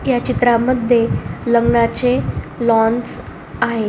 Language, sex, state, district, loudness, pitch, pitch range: Marathi, female, Maharashtra, Solapur, -16 LUFS, 235 Hz, 230-245 Hz